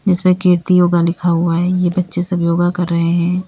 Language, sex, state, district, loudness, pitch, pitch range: Hindi, female, Uttar Pradesh, Lalitpur, -14 LUFS, 175 Hz, 170-180 Hz